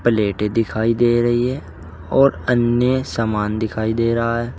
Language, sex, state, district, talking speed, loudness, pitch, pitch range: Hindi, male, Uttar Pradesh, Saharanpur, 155 wpm, -18 LUFS, 115 Hz, 105-120 Hz